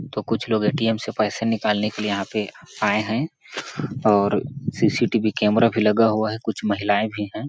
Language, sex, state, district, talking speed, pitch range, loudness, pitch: Hindi, male, Chhattisgarh, Sarguja, 190 wpm, 105-115 Hz, -22 LUFS, 110 Hz